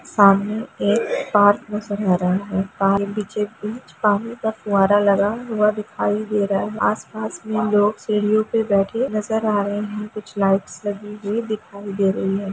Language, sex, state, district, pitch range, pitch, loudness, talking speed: Hindi, female, Bihar, Gaya, 200-215 Hz, 210 Hz, -20 LUFS, 170 wpm